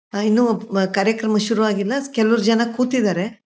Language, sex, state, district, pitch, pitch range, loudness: Kannada, female, Karnataka, Mysore, 220 Hz, 205-235 Hz, -19 LUFS